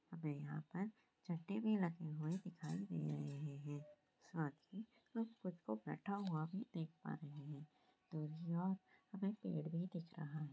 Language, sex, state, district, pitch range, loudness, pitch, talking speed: Hindi, female, Jharkhand, Sahebganj, 150-195 Hz, -47 LUFS, 170 Hz, 155 wpm